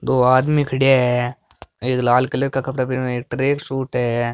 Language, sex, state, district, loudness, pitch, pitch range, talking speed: Marwari, male, Rajasthan, Nagaur, -19 LUFS, 130 Hz, 125-135 Hz, 195 wpm